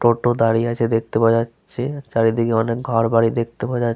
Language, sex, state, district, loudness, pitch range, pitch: Bengali, male, Jharkhand, Sahebganj, -19 LUFS, 115-120 Hz, 115 Hz